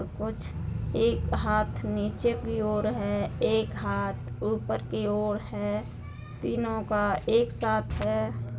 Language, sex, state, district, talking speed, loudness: Hindi, female, Bihar, Darbhanga, 135 wpm, -29 LUFS